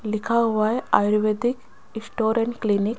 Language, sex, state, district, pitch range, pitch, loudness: Hindi, female, Rajasthan, Jaipur, 215-230 Hz, 220 Hz, -22 LUFS